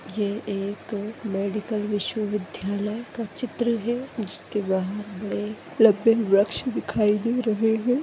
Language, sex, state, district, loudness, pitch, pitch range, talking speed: Hindi, female, Maharashtra, Aurangabad, -25 LUFS, 210 Hz, 205-230 Hz, 110 wpm